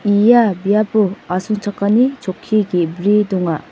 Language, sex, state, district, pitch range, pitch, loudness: Garo, female, Meghalaya, North Garo Hills, 185-215 Hz, 205 Hz, -16 LUFS